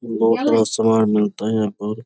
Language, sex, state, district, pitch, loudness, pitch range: Hindi, male, Jharkhand, Sahebganj, 110 Hz, -18 LUFS, 105-110 Hz